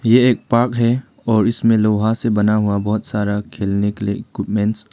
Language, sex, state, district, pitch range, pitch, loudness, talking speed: Hindi, male, Arunachal Pradesh, Lower Dibang Valley, 105-115 Hz, 110 Hz, -18 LUFS, 205 wpm